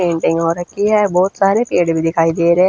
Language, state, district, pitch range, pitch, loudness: Haryanvi, Haryana, Rohtak, 165-195 Hz, 175 Hz, -15 LUFS